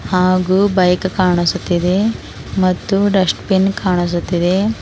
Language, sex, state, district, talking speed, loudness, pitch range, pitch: Kannada, female, Karnataka, Bidar, 85 wpm, -15 LUFS, 180-195 Hz, 185 Hz